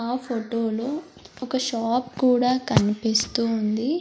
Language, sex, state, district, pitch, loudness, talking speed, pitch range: Telugu, female, Andhra Pradesh, Sri Satya Sai, 240 Hz, -24 LUFS, 120 wpm, 225-255 Hz